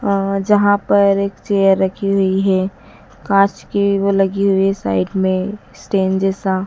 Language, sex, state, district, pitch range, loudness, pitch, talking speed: Hindi, female, Madhya Pradesh, Dhar, 190-200 Hz, -16 LUFS, 195 Hz, 155 wpm